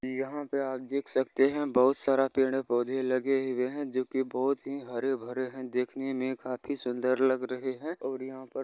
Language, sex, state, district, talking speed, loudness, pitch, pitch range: Maithili, male, Bihar, Bhagalpur, 195 wpm, -30 LUFS, 130 Hz, 130-135 Hz